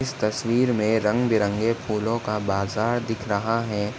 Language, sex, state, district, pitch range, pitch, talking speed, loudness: Hindi, male, Maharashtra, Nagpur, 105-115 Hz, 110 Hz, 150 wpm, -24 LUFS